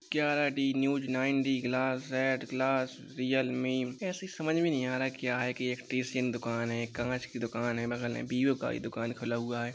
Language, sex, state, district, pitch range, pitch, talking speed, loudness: Hindi, male, Uttar Pradesh, Jalaun, 120-135 Hz, 130 Hz, 215 wpm, -32 LUFS